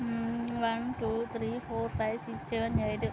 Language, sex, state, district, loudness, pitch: Telugu, female, Andhra Pradesh, Guntur, -33 LUFS, 230 Hz